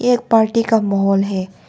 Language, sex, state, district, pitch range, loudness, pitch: Hindi, female, Arunachal Pradesh, Longding, 195-230 Hz, -16 LUFS, 220 Hz